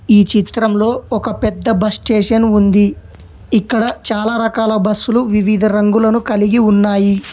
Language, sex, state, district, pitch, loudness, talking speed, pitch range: Telugu, male, Telangana, Hyderabad, 215 Hz, -13 LUFS, 130 wpm, 205-225 Hz